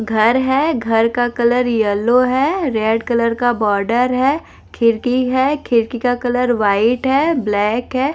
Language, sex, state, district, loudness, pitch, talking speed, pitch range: Hindi, female, Bihar, West Champaran, -16 LUFS, 245 Hz, 155 wpm, 225-260 Hz